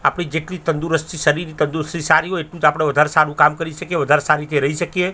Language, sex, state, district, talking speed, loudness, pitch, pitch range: Gujarati, male, Gujarat, Gandhinagar, 235 wpm, -18 LUFS, 155 Hz, 150-170 Hz